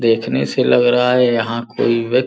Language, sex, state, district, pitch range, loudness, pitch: Hindi, male, Uttar Pradesh, Gorakhpur, 115-125 Hz, -16 LUFS, 120 Hz